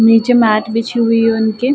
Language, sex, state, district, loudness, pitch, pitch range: Hindi, female, Bihar, Gaya, -13 LUFS, 225 Hz, 225-230 Hz